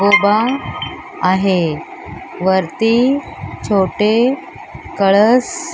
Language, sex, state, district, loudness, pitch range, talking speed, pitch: Marathi, male, Maharashtra, Mumbai Suburban, -15 LUFS, 190-245 Hz, 50 wpm, 210 Hz